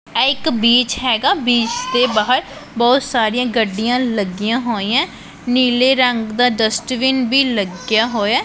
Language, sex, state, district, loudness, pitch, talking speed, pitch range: Punjabi, female, Punjab, Pathankot, -16 LUFS, 245 Hz, 135 wpm, 225-255 Hz